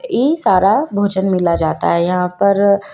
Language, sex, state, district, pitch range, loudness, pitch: Hindi, female, Madhya Pradesh, Dhar, 180-205 Hz, -15 LUFS, 200 Hz